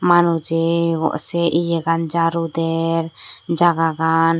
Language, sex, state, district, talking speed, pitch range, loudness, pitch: Chakma, female, Tripura, Dhalai, 110 wpm, 165-170 Hz, -18 LUFS, 165 Hz